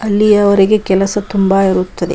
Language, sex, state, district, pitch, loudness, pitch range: Kannada, female, Karnataka, Bijapur, 195 Hz, -12 LUFS, 190-205 Hz